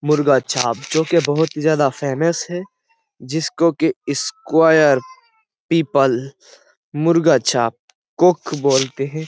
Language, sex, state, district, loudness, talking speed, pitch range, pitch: Hindi, male, Uttar Pradesh, Jyotiba Phule Nagar, -17 LUFS, 115 wpm, 135-170 Hz, 155 Hz